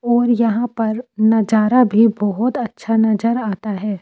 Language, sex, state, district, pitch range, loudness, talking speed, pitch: Hindi, female, Delhi, New Delhi, 215-240 Hz, -17 LUFS, 150 wpm, 225 Hz